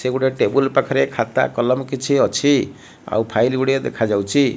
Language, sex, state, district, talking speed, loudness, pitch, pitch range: Odia, female, Odisha, Malkangiri, 160 wpm, -18 LUFS, 130 Hz, 110-135 Hz